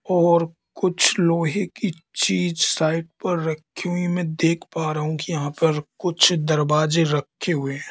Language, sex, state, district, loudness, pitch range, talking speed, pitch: Hindi, male, Madhya Pradesh, Katni, -21 LUFS, 155-175 Hz, 160 wpm, 165 Hz